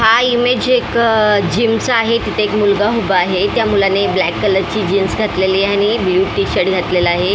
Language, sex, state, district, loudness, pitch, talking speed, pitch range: Marathi, female, Maharashtra, Mumbai Suburban, -14 LUFS, 205 Hz, 205 wpm, 190-225 Hz